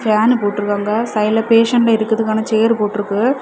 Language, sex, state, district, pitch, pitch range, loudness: Tamil, female, Tamil Nadu, Kanyakumari, 220 Hz, 210-230 Hz, -15 LUFS